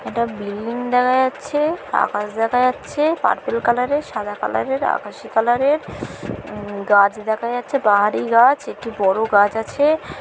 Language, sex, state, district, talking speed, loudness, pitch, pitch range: Bengali, female, West Bengal, Kolkata, 155 wpm, -19 LUFS, 235 Hz, 210-265 Hz